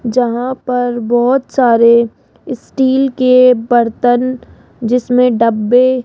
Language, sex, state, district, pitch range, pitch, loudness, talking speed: Hindi, female, Rajasthan, Jaipur, 235-255 Hz, 245 Hz, -12 LUFS, 100 wpm